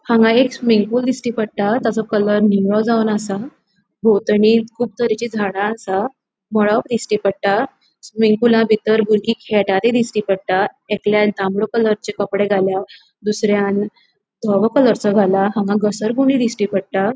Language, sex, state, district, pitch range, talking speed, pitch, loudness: Konkani, female, Goa, North and South Goa, 205-225 Hz, 140 wpm, 210 Hz, -17 LUFS